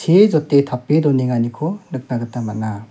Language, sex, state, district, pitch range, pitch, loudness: Garo, male, Meghalaya, South Garo Hills, 120-155 Hz, 130 Hz, -18 LUFS